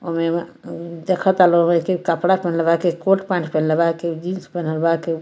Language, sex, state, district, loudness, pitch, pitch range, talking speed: Bhojpuri, female, Bihar, Muzaffarpur, -19 LUFS, 170 Hz, 165-180 Hz, 240 wpm